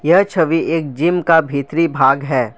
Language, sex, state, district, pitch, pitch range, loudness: Hindi, male, Assam, Kamrup Metropolitan, 160 Hz, 140-165 Hz, -15 LUFS